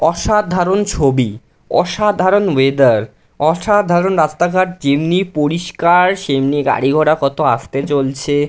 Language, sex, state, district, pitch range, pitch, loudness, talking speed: Bengali, male, West Bengal, North 24 Parganas, 140-180 Hz, 155 Hz, -14 LUFS, 105 wpm